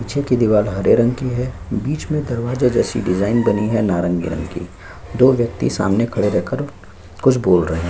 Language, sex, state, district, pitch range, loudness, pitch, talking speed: Hindi, male, Chhattisgarh, Sukma, 90-125 Hz, -18 LUFS, 105 Hz, 195 wpm